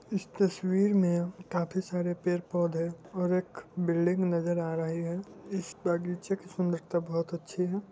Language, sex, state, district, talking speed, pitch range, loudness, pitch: Hindi, male, Bihar, Muzaffarpur, 160 wpm, 170-185 Hz, -31 LUFS, 175 Hz